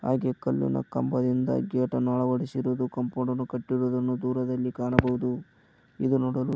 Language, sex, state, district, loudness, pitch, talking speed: Kannada, male, Karnataka, Koppal, -27 LUFS, 125 Hz, 100 wpm